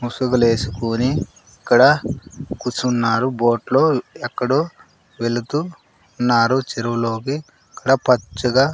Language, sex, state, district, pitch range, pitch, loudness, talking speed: Telugu, male, Andhra Pradesh, Sri Satya Sai, 115-135 Hz, 125 Hz, -19 LUFS, 75 wpm